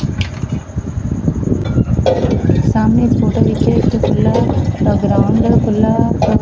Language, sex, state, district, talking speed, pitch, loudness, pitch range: Punjabi, female, Punjab, Fazilka, 85 wpm, 110 Hz, -14 LUFS, 100-115 Hz